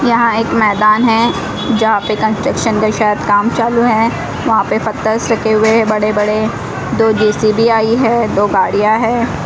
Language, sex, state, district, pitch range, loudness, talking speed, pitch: Hindi, female, Odisha, Malkangiri, 215-230 Hz, -13 LUFS, 165 wpm, 220 Hz